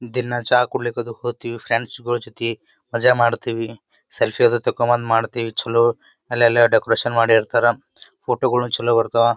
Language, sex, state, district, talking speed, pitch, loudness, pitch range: Kannada, male, Karnataka, Gulbarga, 130 wpm, 120 Hz, -19 LUFS, 115-120 Hz